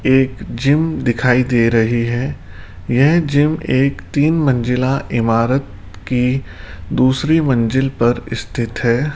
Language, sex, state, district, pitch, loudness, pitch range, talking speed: Hindi, male, Rajasthan, Jaipur, 125 Hz, -16 LUFS, 115-135 Hz, 120 wpm